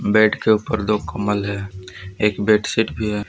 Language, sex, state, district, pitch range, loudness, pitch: Hindi, male, Jharkhand, Palamu, 100-105 Hz, -19 LUFS, 105 Hz